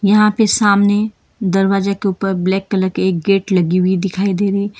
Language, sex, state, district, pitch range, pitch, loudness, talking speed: Hindi, female, Karnataka, Bangalore, 190-205 Hz, 195 Hz, -15 LUFS, 200 wpm